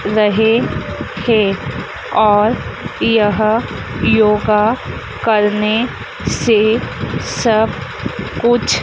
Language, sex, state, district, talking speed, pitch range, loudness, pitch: Hindi, female, Madhya Pradesh, Dhar, 60 wpm, 210-225 Hz, -15 LUFS, 215 Hz